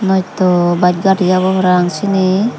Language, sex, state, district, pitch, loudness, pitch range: Chakma, female, Tripura, Dhalai, 185 Hz, -13 LUFS, 180-190 Hz